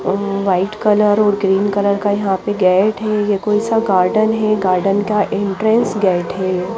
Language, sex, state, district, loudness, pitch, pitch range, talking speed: Hindi, female, Chandigarh, Chandigarh, -16 LUFS, 205 Hz, 195-210 Hz, 195 wpm